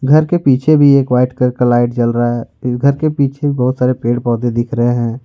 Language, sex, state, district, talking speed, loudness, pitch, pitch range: Hindi, male, Jharkhand, Ranchi, 250 wpm, -14 LUFS, 125 Hz, 120-140 Hz